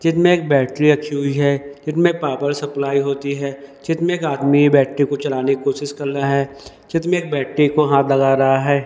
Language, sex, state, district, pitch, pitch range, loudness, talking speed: Hindi, male, Madhya Pradesh, Dhar, 140 Hz, 140-150 Hz, -18 LUFS, 210 wpm